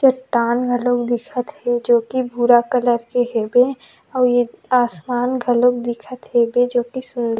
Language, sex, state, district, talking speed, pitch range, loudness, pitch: Chhattisgarhi, female, Chhattisgarh, Rajnandgaon, 155 wpm, 240-250 Hz, -18 LUFS, 245 Hz